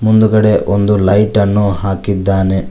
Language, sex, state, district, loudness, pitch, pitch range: Kannada, male, Karnataka, Koppal, -12 LUFS, 100 Hz, 95-105 Hz